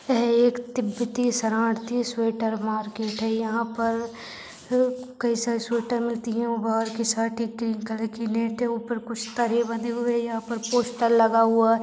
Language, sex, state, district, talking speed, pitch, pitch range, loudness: Hindi, female, Maharashtra, Nagpur, 140 wpm, 230 Hz, 225-235 Hz, -25 LUFS